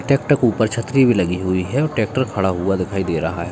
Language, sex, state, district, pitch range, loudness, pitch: Hindi, male, Bihar, Jahanabad, 95-130 Hz, -18 LUFS, 105 Hz